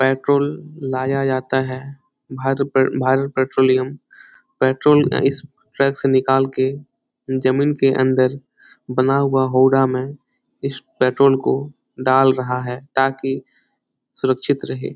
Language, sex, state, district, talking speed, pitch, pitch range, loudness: Hindi, male, Bihar, Lakhisarai, 120 wpm, 135 Hz, 130-140 Hz, -18 LUFS